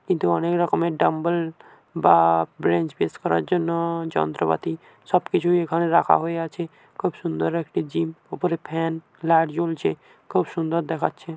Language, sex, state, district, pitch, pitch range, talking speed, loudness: Bengali, male, West Bengal, Paschim Medinipur, 165 Hz, 135-170 Hz, 135 wpm, -23 LUFS